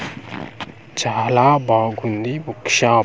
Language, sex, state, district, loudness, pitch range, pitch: Telugu, male, Andhra Pradesh, Manyam, -18 LUFS, 110-125 Hz, 115 Hz